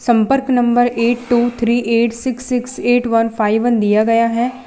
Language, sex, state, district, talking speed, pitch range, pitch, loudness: Hindi, female, Gujarat, Valsad, 195 wpm, 230-245 Hz, 240 Hz, -15 LUFS